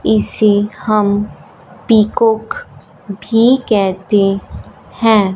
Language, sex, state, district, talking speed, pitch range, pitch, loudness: Hindi, female, Punjab, Fazilka, 65 wpm, 200-225 Hz, 210 Hz, -14 LUFS